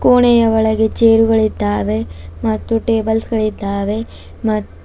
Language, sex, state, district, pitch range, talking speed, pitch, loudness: Kannada, female, Karnataka, Bidar, 200-225 Hz, 85 wpm, 220 Hz, -15 LUFS